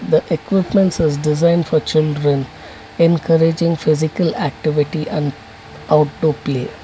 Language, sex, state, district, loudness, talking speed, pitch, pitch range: English, male, Karnataka, Bangalore, -17 LUFS, 115 wpm, 155 Hz, 150-170 Hz